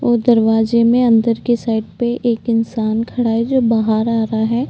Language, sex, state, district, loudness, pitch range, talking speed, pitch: Hindi, female, Uttar Pradesh, Budaun, -16 LUFS, 225-240 Hz, 205 wpm, 230 Hz